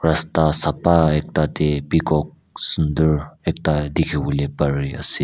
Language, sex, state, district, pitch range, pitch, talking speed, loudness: Nagamese, male, Nagaland, Kohima, 75-80 Hz, 75 Hz, 125 wpm, -19 LUFS